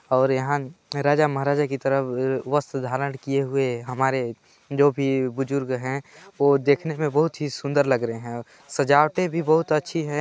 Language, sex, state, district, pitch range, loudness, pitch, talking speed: Hindi, male, Chhattisgarh, Balrampur, 130-145 Hz, -23 LUFS, 140 Hz, 170 wpm